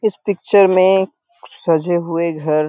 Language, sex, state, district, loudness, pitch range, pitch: Hindi, male, Bihar, Saharsa, -16 LUFS, 165-200 Hz, 185 Hz